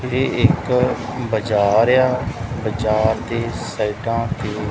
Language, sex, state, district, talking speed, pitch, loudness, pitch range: Punjabi, male, Punjab, Kapurthala, 100 wpm, 115 Hz, -19 LUFS, 110-125 Hz